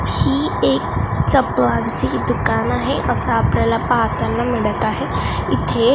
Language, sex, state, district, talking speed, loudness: Marathi, female, Maharashtra, Gondia, 110 wpm, -18 LUFS